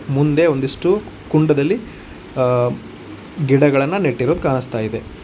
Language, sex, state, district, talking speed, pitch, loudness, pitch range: Kannada, male, Karnataka, Koppal, 90 wpm, 140 Hz, -17 LUFS, 125-150 Hz